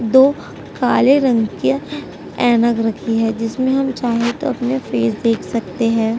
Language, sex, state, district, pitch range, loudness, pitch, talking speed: Hindi, female, Uttar Pradesh, Etah, 225-255 Hz, -17 LUFS, 235 Hz, 155 wpm